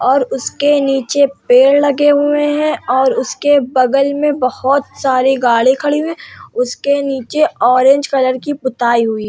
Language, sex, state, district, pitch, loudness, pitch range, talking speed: Hindi, female, Uttar Pradesh, Hamirpur, 275 Hz, -13 LUFS, 255-290 Hz, 160 wpm